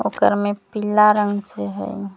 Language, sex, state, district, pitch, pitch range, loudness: Magahi, female, Jharkhand, Palamu, 205 Hz, 195-210 Hz, -19 LUFS